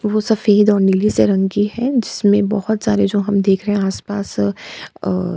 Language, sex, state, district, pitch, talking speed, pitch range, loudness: Hindi, female, Bihar, Kishanganj, 205 Hz, 200 wpm, 195-210 Hz, -16 LUFS